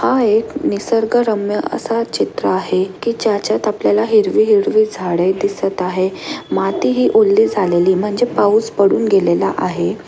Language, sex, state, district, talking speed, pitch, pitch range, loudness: Marathi, female, Maharashtra, Aurangabad, 130 wpm, 215 Hz, 190-245 Hz, -15 LUFS